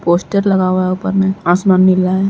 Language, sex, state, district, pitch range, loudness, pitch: Hindi, female, Uttar Pradesh, Deoria, 185-190 Hz, -13 LUFS, 185 Hz